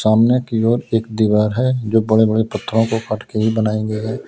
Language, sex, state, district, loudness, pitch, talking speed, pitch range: Hindi, male, Uttar Pradesh, Lalitpur, -17 LUFS, 110 Hz, 240 wpm, 110-115 Hz